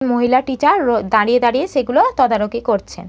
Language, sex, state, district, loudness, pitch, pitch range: Bengali, female, West Bengal, North 24 Parganas, -16 LUFS, 240 Hz, 220-260 Hz